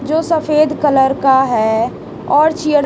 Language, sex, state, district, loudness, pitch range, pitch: Hindi, female, Haryana, Rohtak, -14 LUFS, 265-305 Hz, 290 Hz